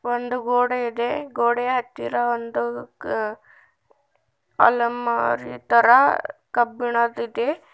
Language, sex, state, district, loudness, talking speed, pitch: Kannada, female, Karnataka, Bidar, -21 LUFS, 75 wpm, 235 Hz